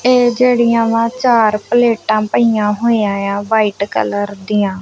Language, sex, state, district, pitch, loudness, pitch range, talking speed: Punjabi, female, Punjab, Kapurthala, 220 Hz, -14 LUFS, 205-235 Hz, 150 wpm